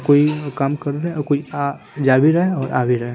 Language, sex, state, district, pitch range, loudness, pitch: Hindi, male, Uttar Pradesh, Muzaffarnagar, 135-150 Hz, -18 LUFS, 145 Hz